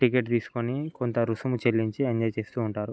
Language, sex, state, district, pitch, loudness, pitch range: Telugu, male, Andhra Pradesh, Guntur, 120 Hz, -28 LUFS, 115-125 Hz